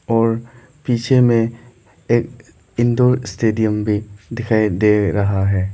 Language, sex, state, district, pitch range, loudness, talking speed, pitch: Hindi, male, Arunachal Pradesh, Lower Dibang Valley, 105-120 Hz, -17 LUFS, 115 wpm, 115 Hz